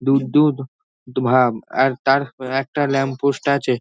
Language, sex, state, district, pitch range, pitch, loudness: Bengali, male, West Bengal, North 24 Parganas, 130-140 Hz, 135 Hz, -19 LUFS